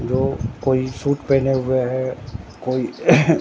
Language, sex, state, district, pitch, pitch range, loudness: Hindi, male, Bihar, Katihar, 130 Hz, 125-135 Hz, -20 LUFS